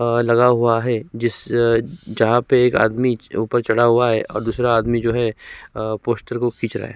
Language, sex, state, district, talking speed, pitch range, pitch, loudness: Hindi, male, Uttar Pradesh, Jyotiba Phule Nagar, 205 wpm, 115-120 Hz, 120 Hz, -18 LUFS